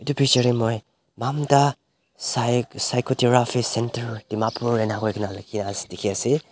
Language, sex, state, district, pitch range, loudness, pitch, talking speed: Nagamese, male, Nagaland, Dimapur, 110-130 Hz, -23 LUFS, 120 Hz, 90 wpm